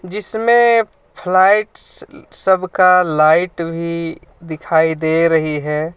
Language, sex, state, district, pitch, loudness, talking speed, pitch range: Hindi, male, Jharkhand, Ranchi, 170 Hz, -15 LUFS, 100 wpm, 160-190 Hz